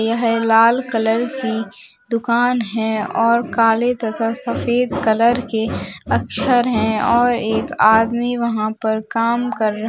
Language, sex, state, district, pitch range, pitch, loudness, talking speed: Hindi, female, Uttar Pradesh, Jalaun, 220-240 Hz, 230 Hz, -17 LUFS, 135 wpm